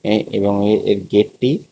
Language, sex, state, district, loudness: Bengali, male, Tripura, West Tripura, -17 LUFS